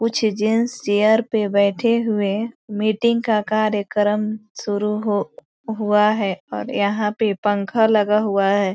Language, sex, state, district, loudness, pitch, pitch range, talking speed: Hindi, female, Bihar, East Champaran, -20 LUFS, 210 Hz, 205-220 Hz, 95 wpm